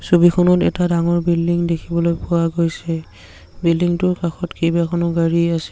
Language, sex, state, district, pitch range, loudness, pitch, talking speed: Assamese, male, Assam, Sonitpur, 165-175 Hz, -18 LUFS, 170 Hz, 135 wpm